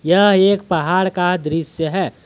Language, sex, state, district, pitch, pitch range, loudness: Hindi, male, Jharkhand, Deoghar, 180 Hz, 165-190 Hz, -16 LUFS